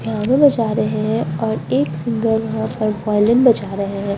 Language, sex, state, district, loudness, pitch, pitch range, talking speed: Hindi, female, Bihar, Patna, -17 LUFS, 215 Hz, 200-225 Hz, 85 wpm